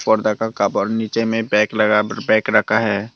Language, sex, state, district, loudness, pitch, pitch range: Hindi, male, Tripura, Dhalai, -18 LUFS, 110 Hz, 105-110 Hz